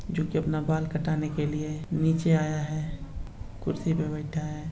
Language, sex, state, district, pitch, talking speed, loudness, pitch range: Hindi, male, Bihar, Purnia, 155 Hz, 180 wpm, -29 LUFS, 155-160 Hz